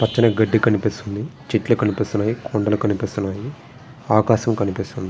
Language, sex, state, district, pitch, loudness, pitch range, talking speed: Telugu, male, Andhra Pradesh, Srikakulam, 110 Hz, -20 LUFS, 105-115 Hz, 105 wpm